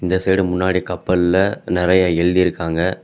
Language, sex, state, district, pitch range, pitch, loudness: Tamil, male, Tamil Nadu, Kanyakumari, 90-95 Hz, 90 Hz, -17 LUFS